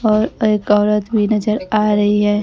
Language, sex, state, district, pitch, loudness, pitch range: Hindi, female, Bihar, Kaimur, 210 Hz, -16 LUFS, 210-215 Hz